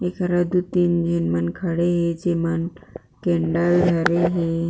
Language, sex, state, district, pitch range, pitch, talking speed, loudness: Chhattisgarhi, female, Chhattisgarh, Jashpur, 170-175 Hz, 170 Hz, 165 wpm, -21 LUFS